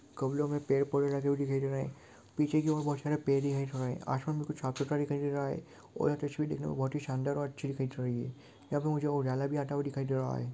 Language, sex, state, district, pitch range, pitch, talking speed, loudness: Hindi, male, Bihar, Gaya, 135-145 Hz, 140 Hz, 220 wpm, -34 LUFS